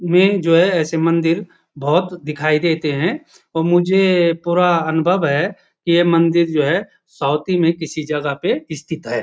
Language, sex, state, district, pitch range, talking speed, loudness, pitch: Hindi, male, Uttarakhand, Uttarkashi, 155-175 Hz, 170 wpm, -17 LUFS, 165 Hz